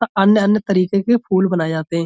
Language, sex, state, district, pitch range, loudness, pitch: Hindi, male, Uttar Pradesh, Budaun, 180-210 Hz, -16 LUFS, 195 Hz